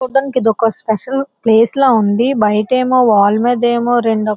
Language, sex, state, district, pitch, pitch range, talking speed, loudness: Telugu, female, Andhra Pradesh, Visakhapatnam, 235 Hz, 220-255 Hz, 140 wpm, -13 LUFS